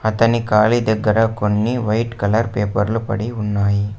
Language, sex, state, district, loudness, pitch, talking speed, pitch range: Telugu, male, Andhra Pradesh, Sri Satya Sai, -18 LUFS, 110 Hz, 135 wpm, 105-115 Hz